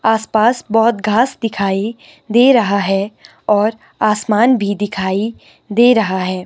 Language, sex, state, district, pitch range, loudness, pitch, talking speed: Hindi, female, Himachal Pradesh, Shimla, 200-235 Hz, -15 LUFS, 215 Hz, 130 wpm